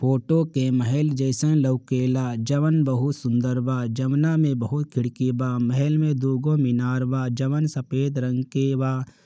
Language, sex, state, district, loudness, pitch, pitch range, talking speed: Bhojpuri, male, Bihar, Gopalganj, -23 LUFS, 130 Hz, 125-145 Hz, 160 wpm